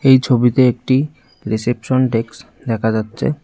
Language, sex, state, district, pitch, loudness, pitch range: Bengali, male, West Bengal, Cooch Behar, 125 Hz, -17 LUFS, 115-130 Hz